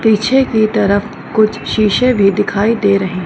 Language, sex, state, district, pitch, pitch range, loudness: Hindi, female, Punjab, Fazilka, 215 Hz, 200-225 Hz, -13 LUFS